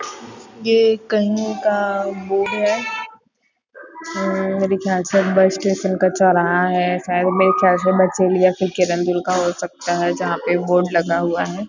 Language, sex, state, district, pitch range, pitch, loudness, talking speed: Hindi, female, Chhattisgarh, Bastar, 180-200 Hz, 185 Hz, -18 LUFS, 165 wpm